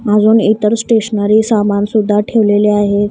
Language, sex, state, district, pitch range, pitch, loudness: Marathi, female, Maharashtra, Gondia, 205-220 Hz, 210 Hz, -12 LUFS